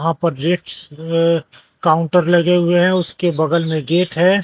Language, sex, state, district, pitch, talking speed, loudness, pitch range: Hindi, male, Bihar, West Champaran, 170 Hz, 160 wpm, -16 LUFS, 165-175 Hz